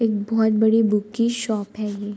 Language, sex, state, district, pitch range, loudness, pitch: Hindi, female, Uttar Pradesh, Varanasi, 210-225 Hz, -21 LUFS, 220 Hz